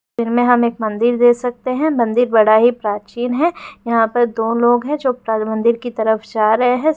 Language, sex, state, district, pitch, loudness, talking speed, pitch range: Hindi, female, Bihar, Darbhanga, 240 Hz, -16 LUFS, 215 wpm, 225-245 Hz